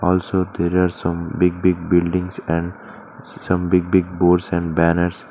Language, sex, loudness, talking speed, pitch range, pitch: English, male, -19 LUFS, 160 wpm, 85-90 Hz, 90 Hz